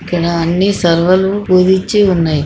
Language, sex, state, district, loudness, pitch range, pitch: Telugu, female, Telangana, Karimnagar, -12 LUFS, 170-190 Hz, 185 Hz